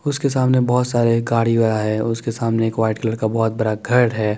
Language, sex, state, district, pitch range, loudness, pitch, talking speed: Hindi, male, Chandigarh, Chandigarh, 110-120 Hz, -18 LUFS, 115 Hz, 190 wpm